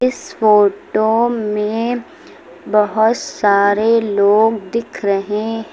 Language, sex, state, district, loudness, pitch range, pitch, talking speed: Hindi, female, Uttar Pradesh, Lucknow, -16 LUFS, 210-230 Hz, 220 Hz, 95 wpm